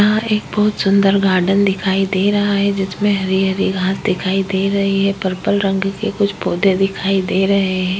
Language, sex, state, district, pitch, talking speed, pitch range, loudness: Hindi, female, Uttar Pradesh, Budaun, 195 Hz, 185 wpm, 190-200 Hz, -16 LUFS